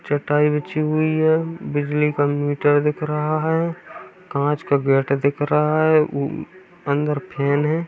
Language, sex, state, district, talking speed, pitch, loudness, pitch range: Hindi, male, Uttar Pradesh, Gorakhpur, 150 wpm, 150 Hz, -20 LUFS, 145-155 Hz